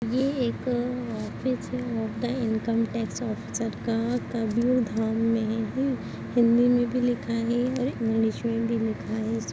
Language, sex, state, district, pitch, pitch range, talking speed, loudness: Hindi, female, Chhattisgarh, Kabirdham, 230 Hz, 225-245 Hz, 145 wpm, -27 LUFS